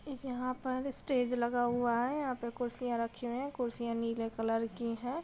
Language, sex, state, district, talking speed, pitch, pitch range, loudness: Hindi, female, Bihar, Gopalganj, 195 wpm, 245 Hz, 235-255 Hz, -35 LUFS